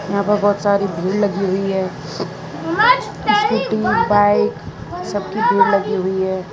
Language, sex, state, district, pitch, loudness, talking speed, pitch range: Hindi, female, Gujarat, Valsad, 195 Hz, -17 LUFS, 140 wpm, 190-205 Hz